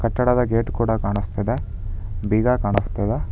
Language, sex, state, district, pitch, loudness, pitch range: Kannada, male, Karnataka, Bangalore, 105 Hz, -22 LUFS, 100-115 Hz